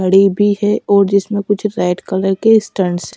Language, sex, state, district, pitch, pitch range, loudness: Hindi, female, Chhattisgarh, Raipur, 200 Hz, 190-205 Hz, -14 LUFS